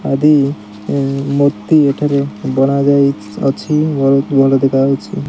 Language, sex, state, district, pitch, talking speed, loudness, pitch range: Odia, male, Odisha, Malkangiri, 140 Hz, 125 wpm, -14 LUFS, 135-140 Hz